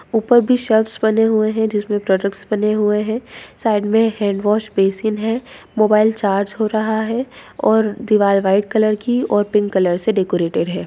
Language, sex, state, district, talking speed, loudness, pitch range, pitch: Hindi, female, Bihar, Saharsa, 170 wpm, -17 LUFS, 205-220 Hz, 215 Hz